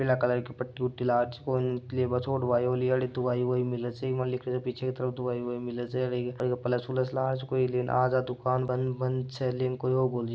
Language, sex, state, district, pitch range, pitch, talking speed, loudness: Marwari, male, Rajasthan, Nagaur, 125-130 Hz, 125 Hz, 160 wpm, -30 LUFS